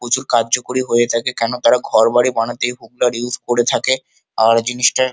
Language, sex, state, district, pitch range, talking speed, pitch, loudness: Bengali, male, West Bengal, Kolkata, 115-125 Hz, 165 wpm, 120 Hz, -16 LUFS